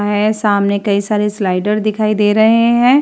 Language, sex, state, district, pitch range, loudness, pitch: Hindi, female, Uttar Pradesh, Hamirpur, 205-215 Hz, -14 LUFS, 210 Hz